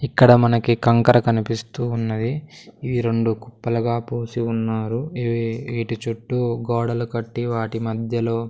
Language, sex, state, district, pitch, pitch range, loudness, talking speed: Telugu, male, Andhra Pradesh, Sri Satya Sai, 115 Hz, 115-120 Hz, -21 LUFS, 120 wpm